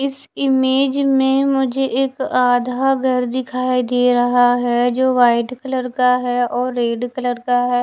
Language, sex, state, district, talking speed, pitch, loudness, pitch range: Hindi, female, Bihar, West Champaran, 160 wpm, 250 Hz, -17 LUFS, 245-265 Hz